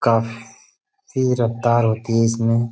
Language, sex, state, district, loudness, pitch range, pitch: Hindi, male, Uttar Pradesh, Budaun, -19 LUFS, 115-120 Hz, 115 Hz